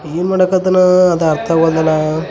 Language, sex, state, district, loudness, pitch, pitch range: Kannada, male, Karnataka, Raichur, -13 LUFS, 170 Hz, 160-185 Hz